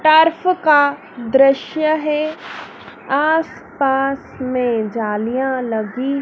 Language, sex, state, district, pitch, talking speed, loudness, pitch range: Hindi, female, Madhya Pradesh, Dhar, 275 Hz, 75 wpm, -17 LUFS, 255-310 Hz